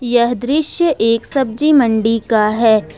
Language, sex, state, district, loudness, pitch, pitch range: Hindi, female, Jharkhand, Ranchi, -14 LUFS, 235 Hz, 225-275 Hz